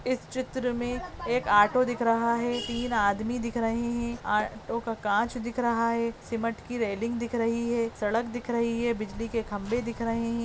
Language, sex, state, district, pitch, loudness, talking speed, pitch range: Hindi, female, Uttarakhand, Tehri Garhwal, 235 Hz, -28 LUFS, 200 wpm, 230-240 Hz